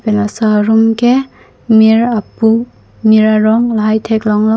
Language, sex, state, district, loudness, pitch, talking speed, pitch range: Karbi, female, Assam, Karbi Anglong, -11 LUFS, 220 Hz, 145 wpm, 215-225 Hz